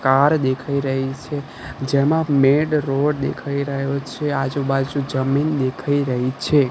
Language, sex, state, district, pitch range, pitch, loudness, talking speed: Gujarati, male, Gujarat, Gandhinagar, 135-145 Hz, 140 Hz, -20 LUFS, 135 wpm